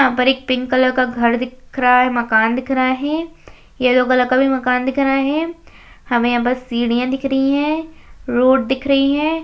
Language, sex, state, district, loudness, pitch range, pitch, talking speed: Hindi, female, Chhattisgarh, Bastar, -17 LUFS, 250-275 Hz, 255 Hz, 210 wpm